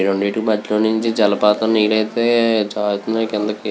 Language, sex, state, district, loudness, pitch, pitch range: Telugu, male, Andhra Pradesh, Visakhapatnam, -17 LUFS, 105 Hz, 105-110 Hz